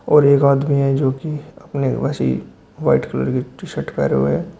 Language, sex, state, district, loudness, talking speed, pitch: Hindi, male, Uttar Pradesh, Shamli, -18 LUFS, 195 wpm, 135 Hz